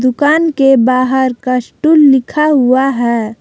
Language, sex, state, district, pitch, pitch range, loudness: Hindi, female, Jharkhand, Palamu, 265 Hz, 255-295 Hz, -11 LUFS